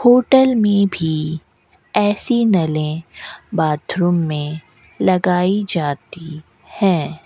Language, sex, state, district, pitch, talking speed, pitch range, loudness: Hindi, female, Rajasthan, Bikaner, 170 Hz, 85 wpm, 155-200 Hz, -17 LUFS